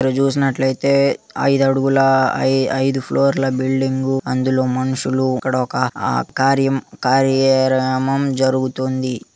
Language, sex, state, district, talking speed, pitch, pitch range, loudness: Telugu, male, Telangana, Karimnagar, 85 wpm, 130 Hz, 130-135 Hz, -17 LUFS